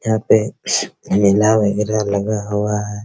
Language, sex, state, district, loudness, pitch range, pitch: Hindi, male, Bihar, Araria, -17 LUFS, 105-110 Hz, 105 Hz